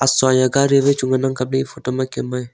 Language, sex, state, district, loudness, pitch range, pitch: Wancho, male, Arunachal Pradesh, Longding, -18 LUFS, 130-135 Hz, 130 Hz